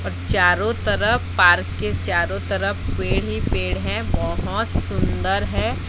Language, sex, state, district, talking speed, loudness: Hindi, female, Odisha, Sambalpur, 145 wpm, -20 LUFS